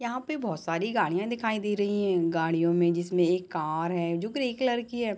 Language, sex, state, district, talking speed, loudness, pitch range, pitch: Hindi, female, Bihar, Gopalganj, 230 wpm, -28 LUFS, 170-235 Hz, 190 Hz